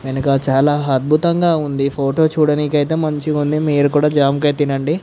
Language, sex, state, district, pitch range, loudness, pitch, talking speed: Telugu, male, Andhra Pradesh, Visakhapatnam, 140-155 Hz, -16 LUFS, 145 Hz, 165 wpm